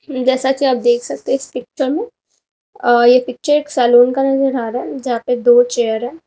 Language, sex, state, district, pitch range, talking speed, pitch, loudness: Hindi, female, Uttar Pradesh, Lalitpur, 245-270 Hz, 230 wpm, 250 Hz, -15 LUFS